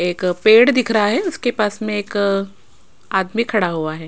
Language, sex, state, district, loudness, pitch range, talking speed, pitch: Hindi, female, Rajasthan, Jaipur, -17 LUFS, 185-225 Hz, 190 wpm, 210 Hz